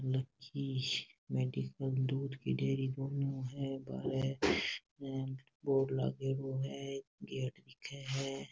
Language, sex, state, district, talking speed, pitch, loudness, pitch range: Rajasthani, male, Rajasthan, Nagaur, 100 wpm, 135 Hz, -38 LUFS, 130-135 Hz